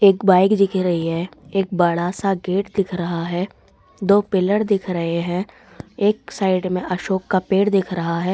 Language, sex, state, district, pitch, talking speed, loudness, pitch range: Hindi, female, Rajasthan, Jaipur, 185 Hz, 185 wpm, -20 LUFS, 175-195 Hz